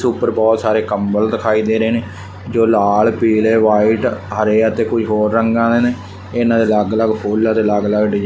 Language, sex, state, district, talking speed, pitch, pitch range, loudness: Punjabi, male, Punjab, Fazilka, 220 wpm, 110 Hz, 105-115 Hz, -15 LUFS